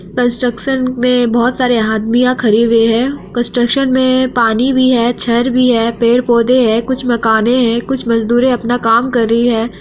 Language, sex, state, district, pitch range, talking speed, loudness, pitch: Hindi, female, Bihar, Araria, 230-250 Hz, 170 wpm, -12 LUFS, 240 Hz